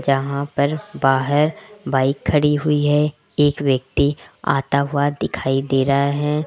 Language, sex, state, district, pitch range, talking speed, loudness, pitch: Hindi, female, Rajasthan, Jaipur, 135-150 Hz, 140 wpm, -19 LUFS, 140 Hz